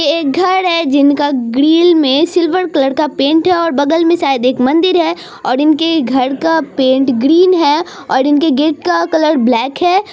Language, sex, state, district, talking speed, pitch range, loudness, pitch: Hindi, female, Bihar, Araria, 195 wpm, 275-340 Hz, -12 LUFS, 310 Hz